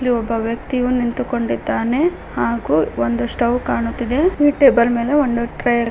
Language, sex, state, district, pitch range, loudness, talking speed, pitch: Kannada, female, Karnataka, Koppal, 235-255 Hz, -18 LUFS, 150 wpm, 240 Hz